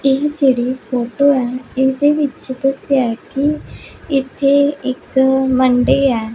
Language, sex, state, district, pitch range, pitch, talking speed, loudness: Punjabi, female, Punjab, Pathankot, 255-280 Hz, 265 Hz, 130 wpm, -16 LUFS